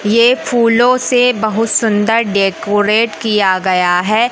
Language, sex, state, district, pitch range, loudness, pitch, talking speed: Hindi, male, Madhya Pradesh, Katni, 205-235 Hz, -12 LUFS, 220 Hz, 125 wpm